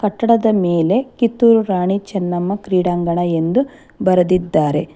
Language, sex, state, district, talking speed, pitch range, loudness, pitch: Kannada, female, Karnataka, Bangalore, 95 wpm, 175-230 Hz, -16 LUFS, 190 Hz